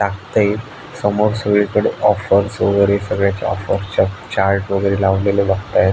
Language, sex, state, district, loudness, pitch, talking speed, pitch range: Marathi, male, Maharashtra, Aurangabad, -17 LUFS, 100 Hz, 100 wpm, 95-105 Hz